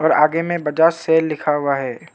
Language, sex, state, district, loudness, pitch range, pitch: Hindi, male, Arunachal Pradesh, Lower Dibang Valley, -18 LUFS, 150-165 Hz, 155 Hz